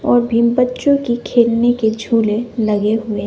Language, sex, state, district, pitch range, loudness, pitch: Hindi, female, Bihar, West Champaran, 220-240 Hz, -15 LUFS, 235 Hz